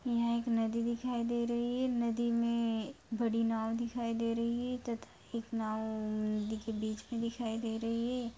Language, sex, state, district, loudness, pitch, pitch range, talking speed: Hindi, female, Bihar, Lakhisarai, -35 LUFS, 230 Hz, 225-235 Hz, 185 wpm